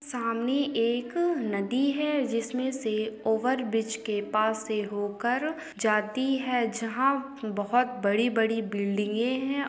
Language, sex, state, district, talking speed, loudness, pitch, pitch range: Hindi, female, Uttarakhand, Tehri Garhwal, 125 wpm, -28 LUFS, 235 Hz, 215-265 Hz